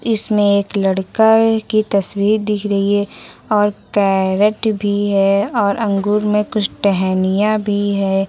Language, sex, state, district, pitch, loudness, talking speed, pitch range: Hindi, female, Uttar Pradesh, Lucknow, 205 Hz, -16 LUFS, 145 wpm, 200-215 Hz